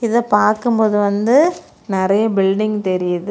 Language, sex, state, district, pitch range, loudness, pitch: Tamil, female, Tamil Nadu, Kanyakumari, 195-225 Hz, -16 LUFS, 210 Hz